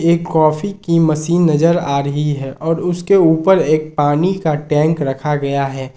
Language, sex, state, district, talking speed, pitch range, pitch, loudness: Hindi, male, Jharkhand, Ranchi, 180 wpm, 145-170 Hz, 155 Hz, -15 LUFS